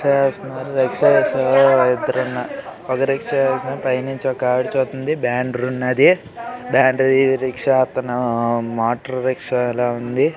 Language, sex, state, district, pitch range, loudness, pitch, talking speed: Telugu, male, Andhra Pradesh, Srikakulam, 125-135 Hz, -18 LUFS, 130 Hz, 125 wpm